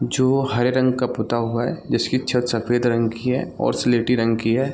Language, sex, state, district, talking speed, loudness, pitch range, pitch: Hindi, male, Chhattisgarh, Bilaspur, 230 wpm, -21 LUFS, 115-130 Hz, 125 Hz